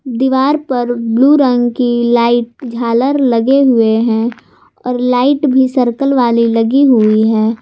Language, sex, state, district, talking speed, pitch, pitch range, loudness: Hindi, female, Jharkhand, Garhwa, 140 wpm, 245 Hz, 235-265 Hz, -12 LUFS